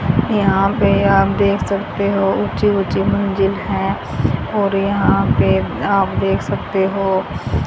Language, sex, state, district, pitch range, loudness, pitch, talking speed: Hindi, female, Haryana, Jhajjar, 125-200 Hz, -17 LUFS, 195 Hz, 140 wpm